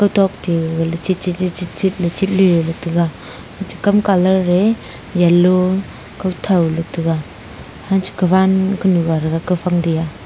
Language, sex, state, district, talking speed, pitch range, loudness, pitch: Wancho, female, Arunachal Pradesh, Longding, 125 wpm, 165-190 Hz, -16 LUFS, 180 Hz